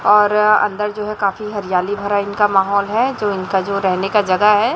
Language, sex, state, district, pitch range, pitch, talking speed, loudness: Hindi, male, Chhattisgarh, Raipur, 195-210 Hz, 205 Hz, 215 wpm, -16 LUFS